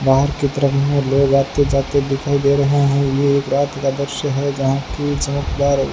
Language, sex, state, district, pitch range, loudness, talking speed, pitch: Hindi, male, Rajasthan, Bikaner, 135-140 Hz, -17 LUFS, 200 wpm, 140 Hz